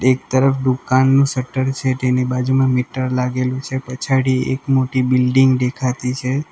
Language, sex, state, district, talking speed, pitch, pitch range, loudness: Gujarati, male, Gujarat, Valsad, 145 wpm, 130 Hz, 125-130 Hz, -17 LUFS